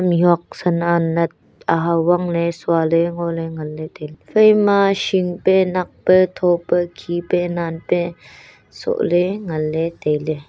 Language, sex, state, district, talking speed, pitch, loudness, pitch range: Wancho, female, Arunachal Pradesh, Longding, 105 wpm, 170 Hz, -18 LUFS, 165-180 Hz